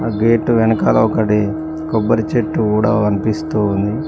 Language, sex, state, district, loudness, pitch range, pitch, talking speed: Telugu, male, Telangana, Mahabubabad, -16 LUFS, 105-115 Hz, 110 Hz, 130 wpm